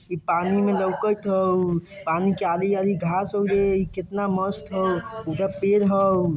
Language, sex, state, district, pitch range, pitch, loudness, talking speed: Bajjika, male, Bihar, Vaishali, 185-200 Hz, 195 Hz, -23 LUFS, 160 wpm